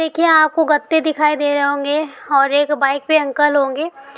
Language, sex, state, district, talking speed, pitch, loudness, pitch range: Hindi, female, Bihar, Sitamarhi, 185 wpm, 295 Hz, -16 LUFS, 285-315 Hz